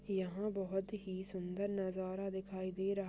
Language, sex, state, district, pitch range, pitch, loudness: Hindi, male, Chhattisgarh, Rajnandgaon, 185-195 Hz, 190 Hz, -41 LUFS